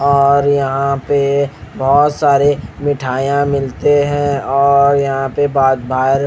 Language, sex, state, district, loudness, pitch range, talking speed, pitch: Hindi, male, Haryana, Rohtak, -14 LUFS, 135-145 Hz, 125 wpm, 140 Hz